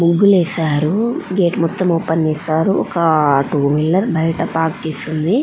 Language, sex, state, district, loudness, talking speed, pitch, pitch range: Telugu, female, Andhra Pradesh, Anantapur, -16 LUFS, 145 wpm, 165 Hz, 155-185 Hz